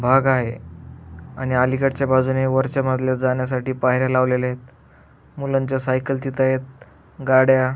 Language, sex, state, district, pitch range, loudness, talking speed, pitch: Marathi, male, Maharashtra, Aurangabad, 130-135 Hz, -20 LUFS, 125 wpm, 130 Hz